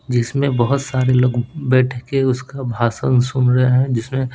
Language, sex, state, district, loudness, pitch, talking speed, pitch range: Hindi, male, Bihar, Patna, -17 LUFS, 130 Hz, 165 wpm, 125-130 Hz